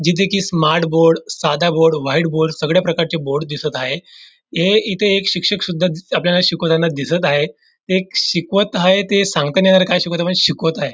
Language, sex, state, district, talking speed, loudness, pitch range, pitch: Marathi, male, Maharashtra, Dhule, 200 wpm, -16 LUFS, 160-185 Hz, 170 Hz